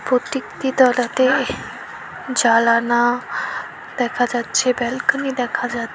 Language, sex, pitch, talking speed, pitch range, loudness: Bengali, female, 245 Hz, 80 wpm, 240-265 Hz, -19 LUFS